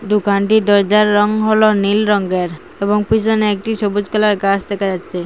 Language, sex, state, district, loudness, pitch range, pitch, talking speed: Bengali, female, Assam, Hailakandi, -15 LUFS, 200-215 Hz, 205 Hz, 160 wpm